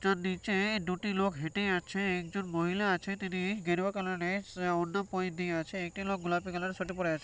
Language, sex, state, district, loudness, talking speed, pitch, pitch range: Bengali, male, West Bengal, North 24 Parganas, -33 LUFS, 215 wpm, 185 Hz, 175-195 Hz